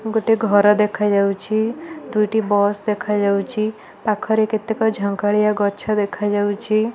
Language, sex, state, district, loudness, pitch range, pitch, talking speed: Odia, female, Odisha, Malkangiri, -19 LUFS, 205-220 Hz, 210 Hz, 95 wpm